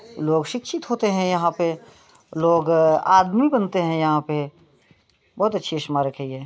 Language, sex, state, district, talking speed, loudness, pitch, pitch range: Hindi, male, Bihar, Muzaffarpur, 160 wpm, -21 LUFS, 170 Hz, 155-200 Hz